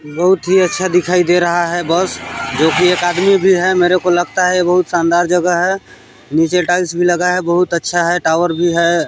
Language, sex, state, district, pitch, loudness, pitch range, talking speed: Hindi, male, Chhattisgarh, Balrampur, 175 Hz, -14 LUFS, 170-180 Hz, 220 wpm